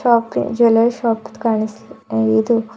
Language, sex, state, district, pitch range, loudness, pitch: Kannada, female, Karnataka, Bidar, 220-235 Hz, -17 LUFS, 225 Hz